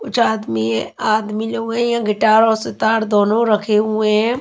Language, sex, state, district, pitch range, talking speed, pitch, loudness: Hindi, female, Maharashtra, Mumbai Suburban, 210-225 Hz, 190 wpm, 215 Hz, -17 LUFS